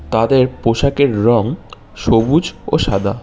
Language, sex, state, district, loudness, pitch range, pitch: Bengali, male, West Bengal, Cooch Behar, -15 LUFS, 110-135 Hz, 120 Hz